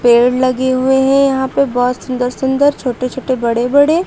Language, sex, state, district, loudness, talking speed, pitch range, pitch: Hindi, female, Uttar Pradesh, Lucknow, -14 LUFS, 190 wpm, 250-270 Hz, 260 Hz